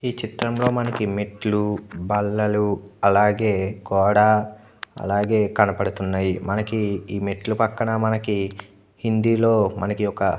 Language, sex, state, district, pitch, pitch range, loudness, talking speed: Telugu, male, Andhra Pradesh, Anantapur, 105 Hz, 100-110 Hz, -22 LUFS, 110 wpm